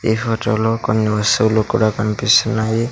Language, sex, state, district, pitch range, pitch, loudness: Telugu, male, Andhra Pradesh, Sri Satya Sai, 110-115 Hz, 110 Hz, -16 LUFS